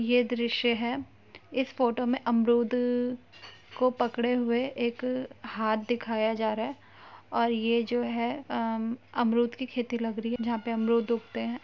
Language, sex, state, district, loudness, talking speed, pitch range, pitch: Hindi, female, Uttar Pradesh, Jyotiba Phule Nagar, -29 LUFS, 170 wpm, 230-245 Hz, 235 Hz